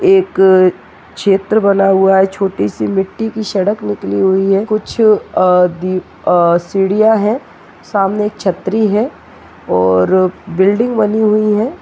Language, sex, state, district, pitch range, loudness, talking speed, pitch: Hindi, female, Chhattisgarh, Sarguja, 185-215 Hz, -13 LUFS, 125 wpm, 195 Hz